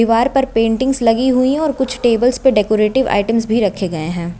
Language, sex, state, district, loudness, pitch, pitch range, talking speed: Hindi, female, Uttar Pradesh, Lucknow, -15 LUFS, 230 Hz, 210-260 Hz, 220 wpm